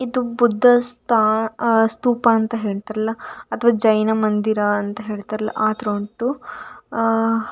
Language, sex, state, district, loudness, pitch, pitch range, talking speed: Kannada, female, Karnataka, Dakshina Kannada, -19 LUFS, 225 Hz, 215-235 Hz, 125 wpm